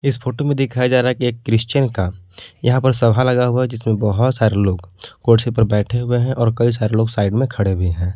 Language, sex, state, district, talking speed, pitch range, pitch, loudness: Hindi, male, Jharkhand, Palamu, 250 wpm, 105-125 Hz, 120 Hz, -17 LUFS